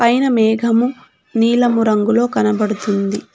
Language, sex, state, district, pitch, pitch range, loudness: Telugu, female, Telangana, Hyderabad, 230 Hz, 215-240 Hz, -16 LUFS